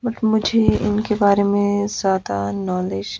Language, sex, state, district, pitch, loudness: Hindi, male, Himachal Pradesh, Shimla, 200 Hz, -19 LUFS